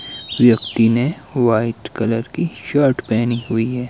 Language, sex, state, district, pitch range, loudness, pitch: Hindi, male, Himachal Pradesh, Shimla, 115-130 Hz, -18 LUFS, 120 Hz